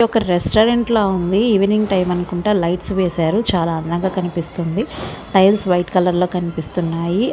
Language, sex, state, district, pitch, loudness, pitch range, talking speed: Telugu, female, Andhra Pradesh, Visakhapatnam, 185 Hz, -17 LUFS, 175-210 Hz, 310 wpm